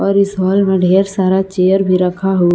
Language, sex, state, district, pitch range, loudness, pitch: Hindi, female, Jharkhand, Palamu, 185-195 Hz, -13 LUFS, 190 Hz